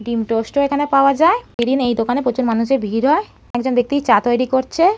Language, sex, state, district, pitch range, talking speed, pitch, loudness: Bengali, female, West Bengal, North 24 Parganas, 240-280 Hz, 215 wpm, 255 Hz, -17 LUFS